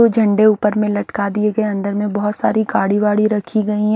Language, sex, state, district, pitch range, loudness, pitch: Hindi, female, Haryana, Charkhi Dadri, 205-215 Hz, -17 LUFS, 210 Hz